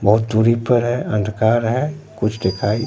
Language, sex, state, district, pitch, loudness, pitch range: Hindi, male, Bihar, Katihar, 110 Hz, -18 LUFS, 105-120 Hz